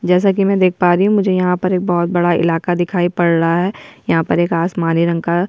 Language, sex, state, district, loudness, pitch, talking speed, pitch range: Hindi, female, Bihar, Kishanganj, -15 LUFS, 175 Hz, 275 wpm, 170-185 Hz